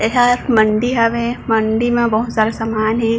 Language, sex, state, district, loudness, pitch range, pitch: Chhattisgarhi, female, Chhattisgarh, Bilaspur, -16 LUFS, 220-240 Hz, 225 Hz